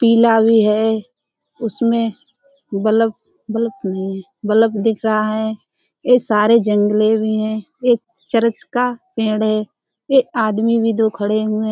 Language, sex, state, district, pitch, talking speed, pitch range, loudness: Hindi, female, Uttar Pradesh, Budaun, 220 Hz, 145 wpm, 215-230 Hz, -17 LUFS